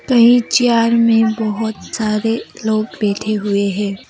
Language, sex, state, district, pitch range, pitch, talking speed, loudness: Hindi, female, Assam, Kamrup Metropolitan, 210-230 Hz, 220 Hz, 130 wpm, -16 LUFS